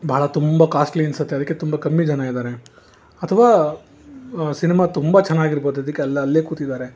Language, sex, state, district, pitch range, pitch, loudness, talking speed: Kannada, male, Karnataka, Bangalore, 140-165 Hz, 155 Hz, -18 LUFS, 145 wpm